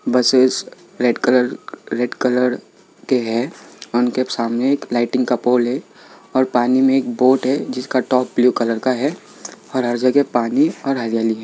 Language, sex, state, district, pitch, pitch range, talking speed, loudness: Marathi, male, Maharashtra, Sindhudurg, 125 Hz, 120-130 Hz, 170 wpm, -18 LUFS